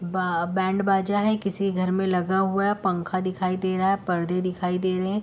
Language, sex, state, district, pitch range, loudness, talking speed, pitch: Hindi, female, Uttar Pradesh, Etah, 185-195 Hz, -24 LUFS, 230 wpm, 190 Hz